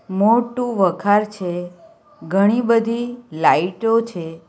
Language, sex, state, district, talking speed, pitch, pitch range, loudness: Gujarati, female, Gujarat, Valsad, 95 wpm, 210 Hz, 175-235 Hz, -19 LUFS